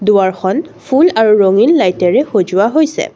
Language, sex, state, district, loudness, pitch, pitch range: Assamese, female, Assam, Kamrup Metropolitan, -12 LUFS, 210 Hz, 190-280 Hz